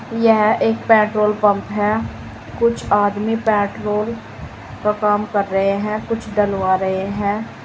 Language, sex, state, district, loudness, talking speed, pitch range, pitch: Hindi, female, Uttar Pradesh, Saharanpur, -18 LUFS, 135 wpm, 200-215 Hz, 210 Hz